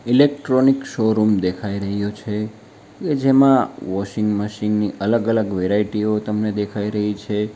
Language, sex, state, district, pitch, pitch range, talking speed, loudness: Gujarati, male, Gujarat, Valsad, 105 Hz, 105-115 Hz, 135 wpm, -20 LUFS